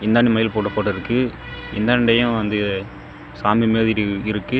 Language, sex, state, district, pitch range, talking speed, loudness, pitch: Tamil, male, Tamil Nadu, Namakkal, 105-115 Hz, 145 wpm, -19 LUFS, 110 Hz